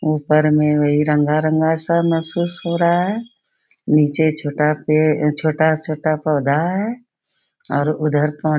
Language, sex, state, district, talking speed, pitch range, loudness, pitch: Hindi, female, Bihar, Bhagalpur, 135 wpm, 150-170 Hz, -17 LUFS, 155 Hz